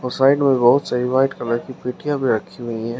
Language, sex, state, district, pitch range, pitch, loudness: Hindi, male, Uttar Pradesh, Shamli, 120-135 Hz, 125 Hz, -19 LUFS